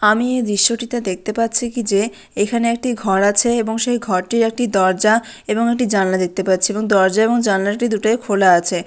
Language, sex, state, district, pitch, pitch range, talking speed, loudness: Bengali, female, West Bengal, Malda, 215 Hz, 195-235 Hz, 180 wpm, -17 LUFS